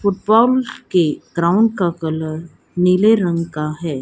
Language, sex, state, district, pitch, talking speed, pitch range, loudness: Hindi, female, Haryana, Jhajjar, 175 Hz, 135 wpm, 160-205 Hz, -17 LUFS